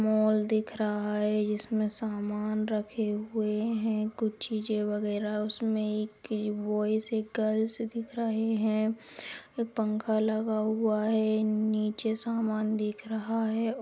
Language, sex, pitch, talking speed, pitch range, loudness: Magahi, female, 215 Hz, 130 wpm, 215-220 Hz, -30 LUFS